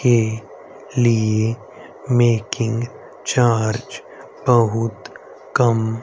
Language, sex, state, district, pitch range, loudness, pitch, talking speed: Hindi, male, Haryana, Rohtak, 110-120 Hz, -19 LUFS, 115 Hz, 60 wpm